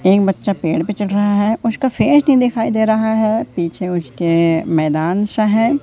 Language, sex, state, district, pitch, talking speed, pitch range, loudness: Hindi, male, Madhya Pradesh, Katni, 205 Hz, 185 wpm, 175-220 Hz, -16 LUFS